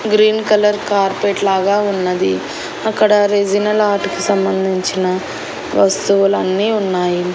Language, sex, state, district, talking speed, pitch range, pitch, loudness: Telugu, female, Andhra Pradesh, Annamaya, 105 wpm, 190-210 Hz, 200 Hz, -15 LUFS